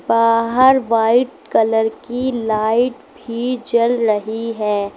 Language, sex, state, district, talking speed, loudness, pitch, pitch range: Hindi, female, Uttar Pradesh, Lucknow, 110 wpm, -17 LUFS, 230 Hz, 220-245 Hz